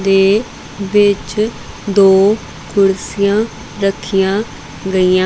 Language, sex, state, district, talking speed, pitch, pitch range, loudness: Punjabi, female, Punjab, Kapurthala, 70 wpm, 195 Hz, 195-205 Hz, -14 LUFS